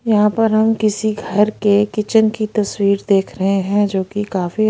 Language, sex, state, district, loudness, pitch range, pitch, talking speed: Hindi, female, Haryana, Rohtak, -16 LUFS, 200-215 Hz, 210 Hz, 180 wpm